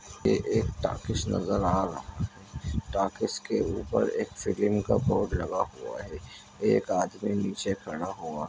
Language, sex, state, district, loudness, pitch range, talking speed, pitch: Hindi, male, Bihar, Begusarai, -29 LUFS, 95-105 Hz, 155 wpm, 100 Hz